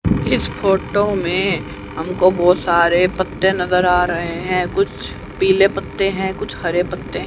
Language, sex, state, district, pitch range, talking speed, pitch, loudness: Hindi, female, Haryana, Rohtak, 175-190 Hz, 150 wpm, 185 Hz, -17 LUFS